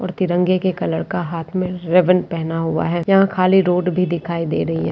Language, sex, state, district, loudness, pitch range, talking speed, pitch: Hindi, female, Uttarakhand, Tehri Garhwal, -18 LUFS, 165-185 Hz, 230 wpm, 180 Hz